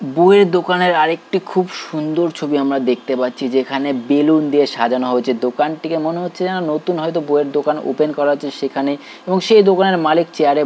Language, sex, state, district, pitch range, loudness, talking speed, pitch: Bengali, male, West Bengal, Dakshin Dinajpur, 140-175 Hz, -16 LUFS, 175 wpm, 150 Hz